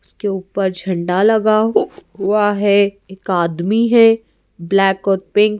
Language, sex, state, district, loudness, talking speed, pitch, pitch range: Hindi, female, Madhya Pradesh, Bhopal, -16 LUFS, 150 wpm, 200 Hz, 190-215 Hz